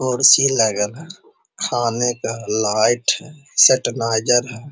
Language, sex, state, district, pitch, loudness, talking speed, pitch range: Hindi, male, Bihar, Jahanabad, 120 Hz, -17 LUFS, 115 wpm, 115-135 Hz